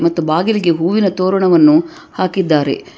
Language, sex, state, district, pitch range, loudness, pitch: Kannada, female, Karnataka, Bangalore, 170-215 Hz, -14 LUFS, 185 Hz